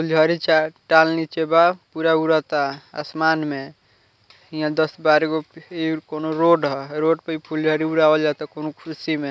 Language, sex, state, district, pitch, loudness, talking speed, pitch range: Bhojpuri, male, Bihar, Muzaffarpur, 155 Hz, -20 LUFS, 155 wpm, 150-160 Hz